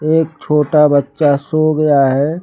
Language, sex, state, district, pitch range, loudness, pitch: Hindi, male, Uttar Pradesh, Lucknow, 145-155 Hz, -13 LUFS, 150 Hz